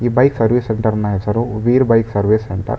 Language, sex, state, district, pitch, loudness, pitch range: Kannada, male, Karnataka, Bangalore, 110 Hz, -16 LUFS, 105-120 Hz